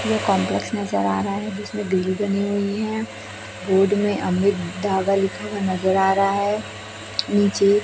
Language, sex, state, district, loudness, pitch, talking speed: Hindi, female, Chhattisgarh, Raipur, -21 LUFS, 195 Hz, 170 wpm